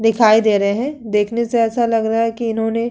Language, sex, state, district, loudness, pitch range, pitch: Hindi, female, Uttar Pradesh, Hamirpur, -17 LUFS, 220-235 Hz, 225 Hz